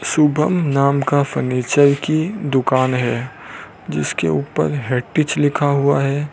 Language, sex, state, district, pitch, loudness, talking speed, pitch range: Hindi, male, Rajasthan, Bikaner, 140 Hz, -17 LUFS, 125 wpm, 125-150 Hz